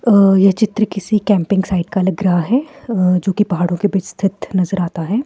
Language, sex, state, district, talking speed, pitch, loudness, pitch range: Hindi, female, Himachal Pradesh, Shimla, 195 wpm, 195 Hz, -16 LUFS, 185-205 Hz